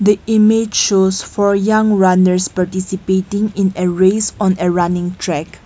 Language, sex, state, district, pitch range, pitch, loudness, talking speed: English, female, Nagaland, Kohima, 180-210 Hz, 190 Hz, -15 LUFS, 150 wpm